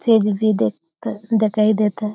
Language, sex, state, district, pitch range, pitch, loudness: Hindi, female, Jharkhand, Sahebganj, 210-215 Hz, 215 Hz, -19 LUFS